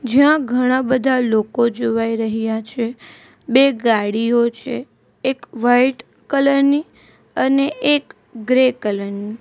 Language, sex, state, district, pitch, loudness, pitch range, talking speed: Gujarati, female, Gujarat, Valsad, 245 Hz, -17 LUFS, 225-265 Hz, 120 wpm